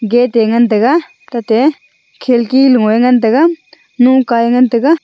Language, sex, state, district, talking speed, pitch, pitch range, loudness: Wancho, female, Arunachal Pradesh, Longding, 120 wpm, 245 Hz, 235-270 Hz, -11 LUFS